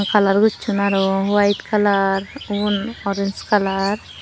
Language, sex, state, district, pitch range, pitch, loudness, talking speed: Chakma, female, Tripura, Unakoti, 195-210 Hz, 200 Hz, -19 LUFS, 115 wpm